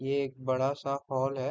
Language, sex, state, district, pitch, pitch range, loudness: Hindi, male, Uttar Pradesh, Deoria, 135 Hz, 130-140 Hz, -31 LUFS